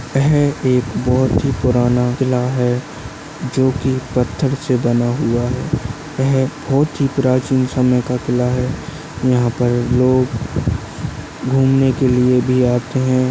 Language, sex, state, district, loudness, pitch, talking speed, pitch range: Hindi, male, Maharashtra, Aurangabad, -17 LUFS, 130 Hz, 140 wpm, 125-135 Hz